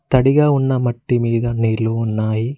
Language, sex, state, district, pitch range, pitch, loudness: Telugu, male, Telangana, Mahabubabad, 115-130 Hz, 120 Hz, -17 LUFS